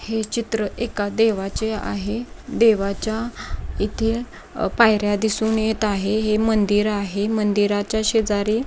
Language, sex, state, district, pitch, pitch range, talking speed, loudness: Marathi, female, Maharashtra, Pune, 220 Hz, 205-225 Hz, 110 wpm, -21 LUFS